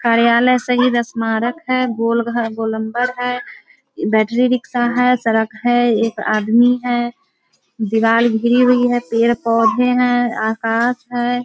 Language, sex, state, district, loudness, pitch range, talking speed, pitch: Hindi, female, Bihar, Begusarai, -16 LUFS, 225-245 Hz, 115 wpm, 240 Hz